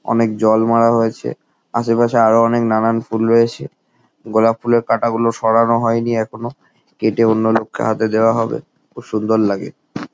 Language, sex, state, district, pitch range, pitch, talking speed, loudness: Bengali, male, West Bengal, Jalpaiguri, 110-115 Hz, 115 Hz, 165 wpm, -16 LUFS